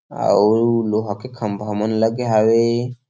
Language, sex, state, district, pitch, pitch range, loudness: Chhattisgarhi, male, Chhattisgarh, Sarguja, 110 Hz, 105-120 Hz, -18 LUFS